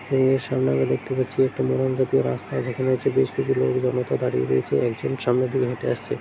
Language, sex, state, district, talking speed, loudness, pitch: Bengali, male, West Bengal, Jhargram, 205 wpm, -23 LUFS, 130 Hz